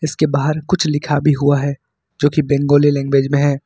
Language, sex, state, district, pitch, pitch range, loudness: Hindi, male, Jharkhand, Ranchi, 145 Hz, 140-155 Hz, -16 LUFS